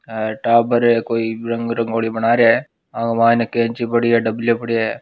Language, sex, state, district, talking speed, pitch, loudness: Hindi, male, Rajasthan, Nagaur, 205 wpm, 115 Hz, -17 LUFS